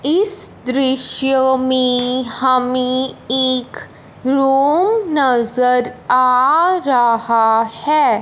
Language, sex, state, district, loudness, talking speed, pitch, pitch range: Hindi, male, Punjab, Fazilka, -15 LUFS, 75 wpm, 255 Hz, 250-275 Hz